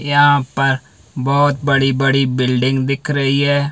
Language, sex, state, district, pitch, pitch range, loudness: Hindi, male, Himachal Pradesh, Shimla, 135 Hz, 130-145 Hz, -16 LUFS